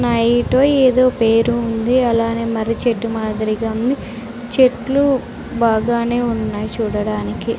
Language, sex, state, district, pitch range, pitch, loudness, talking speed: Telugu, female, Andhra Pradesh, Sri Satya Sai, 225-245 Hz, 230 Hz, -17 LUFS, 105 wpm